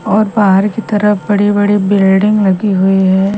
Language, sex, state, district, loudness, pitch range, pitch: Hindi, female, Haryana, Rohtak, -11 LUFS, 195-210 Hz, 205 Hz